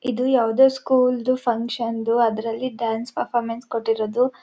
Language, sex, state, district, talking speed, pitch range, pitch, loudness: Kannada, female, Karnataka, Chamarajanagar, 120 wpm, 230-255 Hz, 240 Hz, -21 LUFS